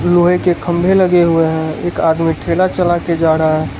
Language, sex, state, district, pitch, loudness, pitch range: Hindi, male, Gujarat, Valsad, 170 Hz, -14 LUFS, 160-175 Hz